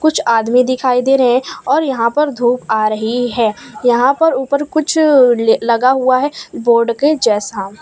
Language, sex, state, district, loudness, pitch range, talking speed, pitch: Hindi, female, Gujarat, Valsad, -14 LUFS, 230-280 Hz, 175 wpm, 250 Hz